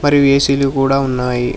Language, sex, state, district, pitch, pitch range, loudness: Telugu, male, Telangana, Hyderabad, 135 Hz, 130-140 Hz, -14 LUFS